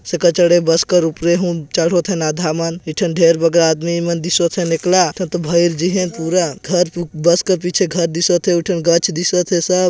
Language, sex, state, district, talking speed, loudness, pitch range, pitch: Hindi, male, Chhattisgarh, Jashpur, 225 wpm, -15 LUFS, 165-180 Hz, 175 Hz